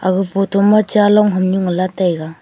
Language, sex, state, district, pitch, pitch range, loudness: Wancho, female, Arunachal Pradesh, Longding, 190 Hz, 185-205 Hz, -14 LUFS